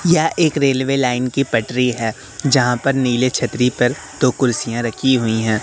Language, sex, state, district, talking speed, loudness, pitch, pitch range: Hindi, male, Madhya Pradesh, Katni, 180 wpm, -17 LUFS, 125 Hz, 120-135 Hz